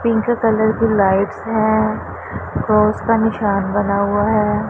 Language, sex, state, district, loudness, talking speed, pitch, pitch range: Hindi, female, Punjab, Pathankot, -17 LUFS, 140 wpm, 210 Hz, 200-220 Hz